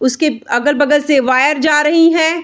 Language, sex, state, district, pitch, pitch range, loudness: Hindi, female, Bihar, Darbhanga, 295 Hz, 270-310 Hz, -12 LUFS